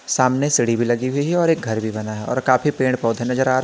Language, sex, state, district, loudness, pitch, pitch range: Hindi, male, Uttar Pradesh, Lalitpur, -19 LUFS, 130 Hz, 115-130 Hz